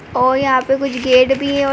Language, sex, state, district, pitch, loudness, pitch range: Hindi, female, Bihar, Begusarai, 265 Hz, -15 LUFS, 255-275 Hz